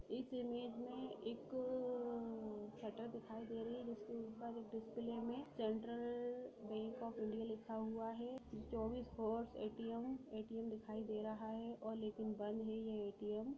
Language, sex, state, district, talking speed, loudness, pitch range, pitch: Hindi, female, Bihar, Sitamarhi, 165 wpm, -47 LUFS, 220-240 Hz, 225 Hz